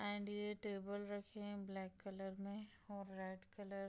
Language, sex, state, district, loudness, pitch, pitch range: Hindi, female, Bihar, Darbhanga, -48 LUFS, 200 Hz, 195-205 Hz